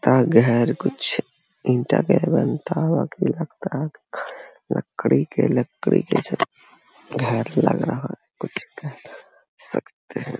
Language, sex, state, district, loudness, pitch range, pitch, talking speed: Hindi, male, Uttar Pradesh, Hamirpur, -22 LUFS, 120-165 Hz, 145 Hz, 80 wpm